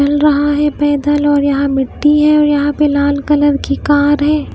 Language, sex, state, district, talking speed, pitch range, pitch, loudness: Hindi, female, Himachal Pradesh, Shimla, 210 wpm, 285-295 Hz, 290 Hz, -12 LUFS